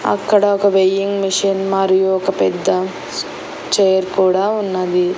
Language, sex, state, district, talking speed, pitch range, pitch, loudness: Telugu, female, Andhra Pradesh, Annamaya, 115 wpm, 190-200 Hz, 190 Hz, -16 LUFS